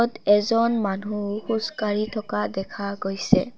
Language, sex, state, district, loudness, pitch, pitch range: Assamese, female, Assam, Kamrup Metropolitan, -24 LUFS, 210 Hz, 200-225 Hz